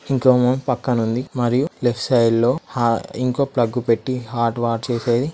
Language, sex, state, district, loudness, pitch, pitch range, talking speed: Telugu, male, Andhra Pradesh, Krishna, -20 LUFS, 125 Hz, 115-130 Hz, 100 wpm